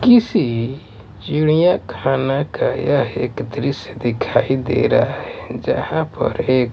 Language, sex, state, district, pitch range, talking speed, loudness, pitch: Hindi, male, Maharashtra, Mumbai Suburban, 120-155 Hz, 125 wpm, -18 LUFS, 130 Hz